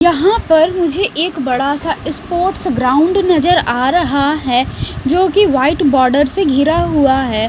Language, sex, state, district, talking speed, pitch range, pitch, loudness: Hindi, female, Bihar, West Champaran, 160 wpm, 270-350 Hz, 315 Hz, -13 LUFS